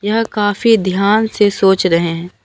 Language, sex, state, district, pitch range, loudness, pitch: Hindi, female, Bihar, Katihar, 185-220 Hz, -14 LUFS, 205 Hz